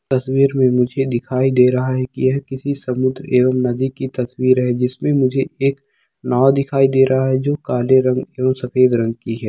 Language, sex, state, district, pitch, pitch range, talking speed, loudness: Hindi, male, Bihar, Begusarai, 130 Hz, 125-135 Hz, 195 wpm, -17 LUFS